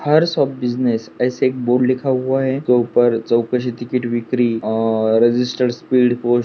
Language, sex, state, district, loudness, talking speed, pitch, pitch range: Hindi, male, Maharashtra, Pune, -17 LUFS, 175 wpm, 125 Hz, 120-130 Hz